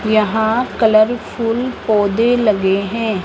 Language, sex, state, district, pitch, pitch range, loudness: Hindi, female, Rajasthan, Jaipur, 220 Hz, 210-230 Hz, -16 LUFS